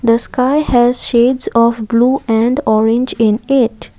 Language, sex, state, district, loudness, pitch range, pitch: English, female, Assam, Kamrup Metropolitan, -13 LUFS, 225-255 Hz, 235 Hz